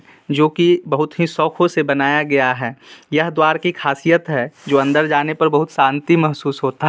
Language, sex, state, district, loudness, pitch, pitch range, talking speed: Hindi, male, Bihar, Muzaffarpur, -17 LUFS, 155 Hz, 140-160 Hz, 200 wpm